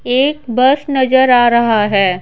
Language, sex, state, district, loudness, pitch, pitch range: Hindi, female, Bihar, Patna, -12 LUFS, 250 Hz, 230-265 Hz